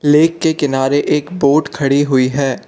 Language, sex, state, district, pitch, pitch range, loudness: Hindi, male, Arunachal Pradesh, Lower Dibang Valley, 145 Hz, 135-150 Hz, -14 LUFS